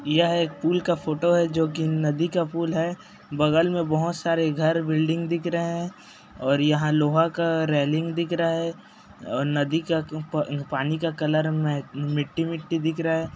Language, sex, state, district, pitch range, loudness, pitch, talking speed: Hindi, male, Chhattisgarh, Raigarh, 155-170 Hz, -24 LUFS, 160 Hz, 185 wpm